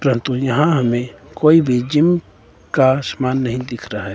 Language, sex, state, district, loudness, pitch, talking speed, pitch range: Hindi, male, Himachal Pradesh, Shimla, -17 LUFS, 130 Hz, 175 wpm, 120-145 Hz